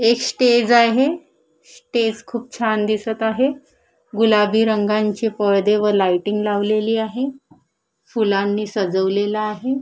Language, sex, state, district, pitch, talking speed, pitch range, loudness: Marathi, female, Maharashtra, Chandrapur, 220 Hz, 110 wpm, 210-240 Hz, -18 LUFS